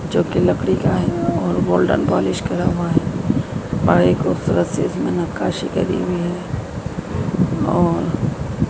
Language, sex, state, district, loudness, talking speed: Hindi, female, Madhya Pradesh, Dhar, -19 LUFS, 130 wpm